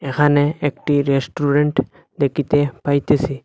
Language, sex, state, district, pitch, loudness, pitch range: Bengali, male, Assam, Hailakandi, 145 Hz, -18 LUFS, 140-145 Hz